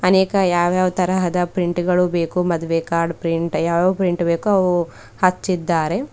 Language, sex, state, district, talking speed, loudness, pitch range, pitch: Kannada, female, Karnataka, Bidar, 155 wpm, -19 LUFS, 170-185 Hz, 175 Hz